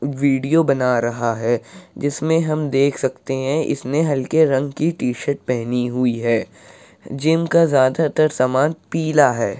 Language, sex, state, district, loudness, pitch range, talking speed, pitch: Hindi, male, Uttar Pradesh, Hamirpur, -19 LUFS, 125-155 Hz, 150 wpm, 140 Hz